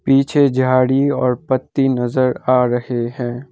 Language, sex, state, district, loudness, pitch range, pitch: Hindi, male, Sikkim, Gangtok, -17 LUFS, 125-135 Hz, 130 Hz